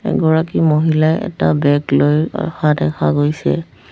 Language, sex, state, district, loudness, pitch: Assamese, female, Assam, Sonitpur, -15 LUFS, 150 Hz